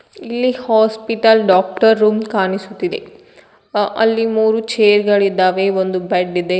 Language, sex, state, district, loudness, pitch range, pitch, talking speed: Kannada, female, Karnataka, Koppal, -15 LUFS, 190-225 Hz, 215 Hz, 110 wpm